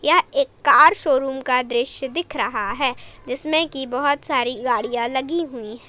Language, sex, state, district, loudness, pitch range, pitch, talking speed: Hindi, female, Jharkhand, Palamu, -20 LUFS, 245-290 Hz, 265 Hz, 175 wpm